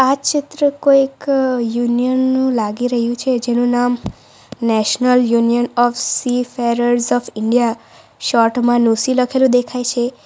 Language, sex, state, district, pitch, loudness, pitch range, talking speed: Gujarati, female, Gujarat, Valsad, 245 Hz, -16 LUFS, 235-255 Hz, 130 wpm